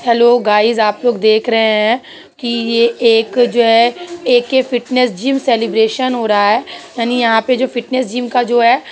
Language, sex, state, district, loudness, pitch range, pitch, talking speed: Hindi, female, Uttar Pradesh, Hamirpur, -13 LUFS, 225-245 Hz, 235 Hz, 180 wpm